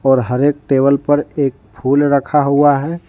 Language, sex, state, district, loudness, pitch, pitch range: Hindi, male, Jharkhand, Deoghar, -15 LUFS, 140 Hz, 135-145 Hz